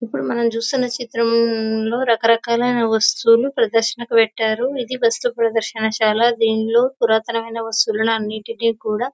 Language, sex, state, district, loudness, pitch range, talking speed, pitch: Telugu, female, Telangana, Nalgonda, -18 LUFS, 225-235 Hz, 120 wpm, 230 Hz